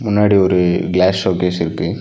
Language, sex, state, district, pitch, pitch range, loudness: Tamil, male, Tamil Nadu, Nilgiris, 90 Hz, 90-100 Hz, -15 LUFS